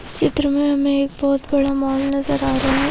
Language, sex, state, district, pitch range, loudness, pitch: Hindi, female, Madhya Pradesh, Bhopal, 275-285 Hz, -18 LUFS, 275 Hz